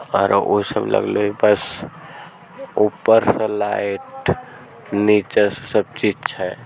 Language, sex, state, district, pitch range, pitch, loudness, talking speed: Magahi, male, Bihar, Samastipur, 100-105 Hz, 105 Hz, -19 LUFS, 110 wpm